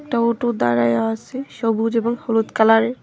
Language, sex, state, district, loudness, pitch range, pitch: Bengali, female, Tripura, West Tripura, -19 LUFS, 225-235 Hz, 230 Hz